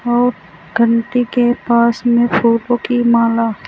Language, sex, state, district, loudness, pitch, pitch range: Hindi, female, Uttar Pradesh, Saharanpur, -14 LUFS, 235 Hz, 230-240 Hz